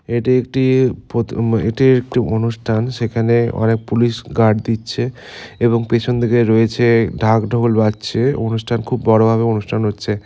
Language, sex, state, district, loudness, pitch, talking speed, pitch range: Bengali, male, West Bengal, Malda, -16 LUFS, 115 Hz, 140 wpm, 110-120 Hz